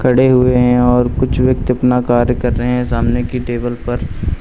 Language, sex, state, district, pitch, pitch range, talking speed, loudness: Hindi, male, Uttar Pradesh, Lucknow, 125 Hz, 120-125 Hz, 190 wpm, -14 LUFS